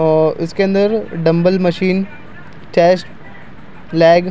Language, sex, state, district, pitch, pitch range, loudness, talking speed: Hindi, male, Maharashtra, Mumbai Suburban, 175 Hz, 165-190 Hz, -14 LUFS, 110 wpm